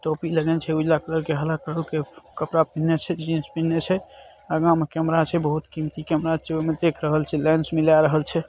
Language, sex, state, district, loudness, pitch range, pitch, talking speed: Maithili, male, Bihar, Saharsa, -23 LUFS, 155-165 Hz, 160 Hz, 235 wpm